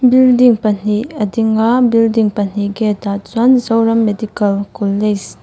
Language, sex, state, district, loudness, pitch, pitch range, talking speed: Mizo, female, Mizoram, Aizawl, -14 LUFS, 220 Hz, 205-230 Hz, 155 wpm